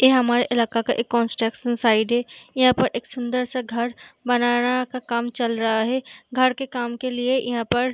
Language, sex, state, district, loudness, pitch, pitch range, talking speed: Hindi, female, Bihar, Saharsa, -22 LUFS, 245 Hz, 235-255 Hz, 210 wpm